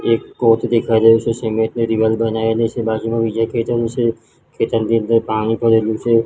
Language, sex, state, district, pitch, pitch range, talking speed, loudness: Gujarati, male, Gujarat, Gandhinagar, 115 Hz, 110-115 Hz, 145 wpm, -17 LUFS